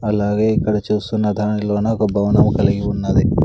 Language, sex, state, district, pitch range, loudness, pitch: Telugu, male, Andhra Pradesh, Sri Satya Sai, 100-105 Hz, -17 LUFS, 105 Hz